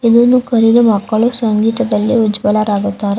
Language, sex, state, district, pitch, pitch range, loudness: Kannada, female, Karnataka, Mysore, 220 Hz, 210-235 Hz, -12 LUFS